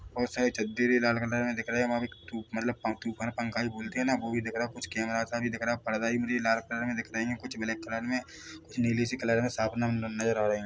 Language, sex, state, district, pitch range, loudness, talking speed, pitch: Hindi, male, Chhattisgarh, Bilaspur, 115-120 Hz, -31 LUFS, 270 wpm, 115 Hz